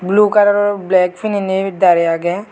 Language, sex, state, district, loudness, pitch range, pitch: Chakma, male, Tripura, West Tripura, -14 LUFS, 180-205 Hz, 195 Hz